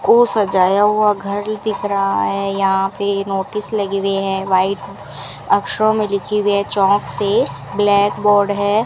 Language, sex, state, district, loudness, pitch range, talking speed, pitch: Hindi, female, Rajasthan, Bikaner, -17 LUFS, 195-210 Hz, 160 wpm, 200 Hz